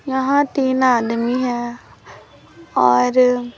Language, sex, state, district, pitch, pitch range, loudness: Hindi, female, Chhattisgarh, Raipur, 250 Hz, 240-260 Hz, -17 LUFS